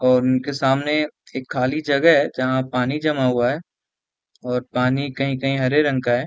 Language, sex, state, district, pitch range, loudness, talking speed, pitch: Hindi, male, Bihar, Saran, 125-140 Hz, -20 LUFS, 200 wpm, 130 Hz